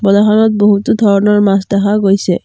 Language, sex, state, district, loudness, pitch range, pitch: Assamese, female, Assam, Kamrup Metropolitan, -11 LUFS, 200-210 Hz, 205 Hz